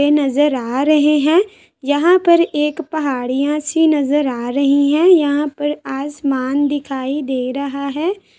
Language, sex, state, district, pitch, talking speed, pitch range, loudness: Hindi, female, Uttar Pradesh, Jalaun, 290 Hz, 150 wpm, 275-305 Hz, -16 LUFS